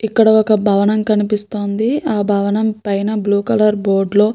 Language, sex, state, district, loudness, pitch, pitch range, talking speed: Telugu, female, Andhra Pradesh, Guntur, -15 LUFS, 210 Hz, 205-220 Hz, 165 wpm